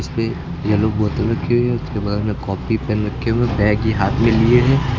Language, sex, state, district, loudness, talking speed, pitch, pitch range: Hindi, male, Uttar Pradesh, Lucknow, -18 LUFS, 240 wpm, 110 Hz, 105-120 Hz